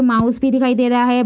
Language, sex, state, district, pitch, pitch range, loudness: Hindi, female, Bihar, Madhepura, 245 Hz, 245-255 Hz, -16 LUFS